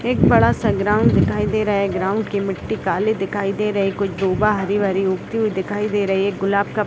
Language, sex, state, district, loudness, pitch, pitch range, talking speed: Hindi, female, Bihar, Gopalganj, -19 LUFS, 200 Hz, 195-210 Hz, 245 wpm